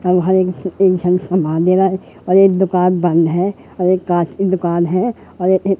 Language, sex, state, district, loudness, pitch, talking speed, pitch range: Hindi, male, Madhya Pradesh, Katni, -15 LUFS, 185 Hz, 175 wpm, 180-190 Hz